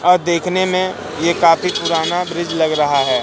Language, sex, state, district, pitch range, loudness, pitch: Hindi, male, Madhya Pradesh, Katni, 160-180 Hz, -16 LUFS, 170 Hz